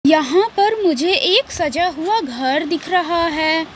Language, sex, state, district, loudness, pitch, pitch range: Hindi, female, Bihar, West Champaran, -17 LUFS, 340 Hz, 315-375 Hz